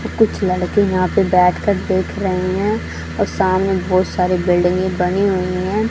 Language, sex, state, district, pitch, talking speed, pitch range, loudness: Hindi, female, Haryana, Charkhi Dadri, 185 Hz, 160 wpm, 185-200 Hz, -17 LUFS